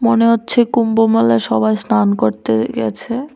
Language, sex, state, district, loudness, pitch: Bengali, female, Tripura, West Tripura, -15 LUFS, 190 Hz